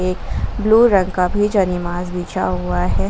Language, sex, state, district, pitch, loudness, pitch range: Hindi, female, Jharkhand, Ranchi, 180 Hz, -18 LUFS, 175-195 Hz